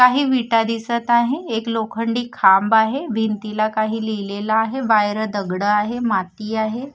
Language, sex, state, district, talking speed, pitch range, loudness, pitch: Marathi, female, Maharashtra, Gondia, 145 wpm, 215-235 Hz, -19 LUFS, 225 Hz